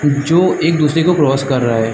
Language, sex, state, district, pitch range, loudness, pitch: Hindi, male, Chhattisgarh, Bastar, 135-165 Hz, -14 LUFS, 150 Hz